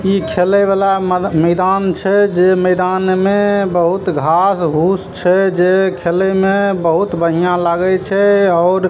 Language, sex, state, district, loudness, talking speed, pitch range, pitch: Maithili, male, Bihar, Samastipur, -13 LUFS, 150 wpm, 180-195 Hz, 185 Hz